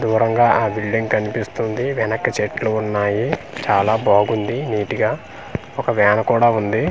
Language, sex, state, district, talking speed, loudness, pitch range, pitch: Telugu, male, Andhra Pradesh, Manyam, 130 wpm, -18 LUFS, 105-115 Hz, 110 Hz